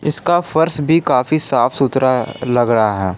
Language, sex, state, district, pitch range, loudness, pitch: Hindi, male, Jharkhand, Palamu, 120-155 Hz, -15 LUFS, 135 Hz